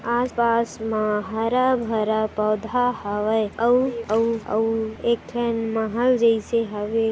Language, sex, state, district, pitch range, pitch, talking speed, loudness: Hindi, female, Chhattisgarh, Kabirdham, 220-235 Hz, 225 Hz, 120 wpm, -22 LUFS